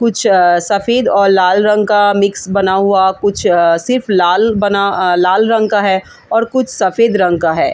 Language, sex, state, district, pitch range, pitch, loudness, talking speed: Hindi, female, Delhi, New Delhi, 185-215 Hz, 200 Hz, -12 LUFS, 180 wpm